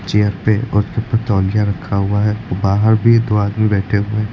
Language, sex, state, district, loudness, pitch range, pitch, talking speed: Hindi, male, Uttar Pradesh, Lucknow, -16 LUFS, 100-110 Hz, 105 Hz, 220 wpm